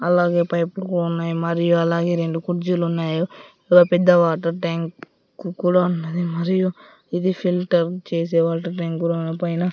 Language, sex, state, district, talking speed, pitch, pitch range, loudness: Telugu, male, Andhra Pradesh, Sri Satya Sai, 130 wpm, 170 Hz, 170-180 Hz, -20 LUFS